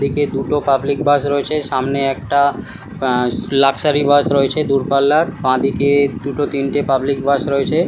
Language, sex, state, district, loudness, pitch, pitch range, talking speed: Bengali, male, West Bengal, Kolkata, -16 LUFS, 140 Hz, 135-145 Hz, 135 wpm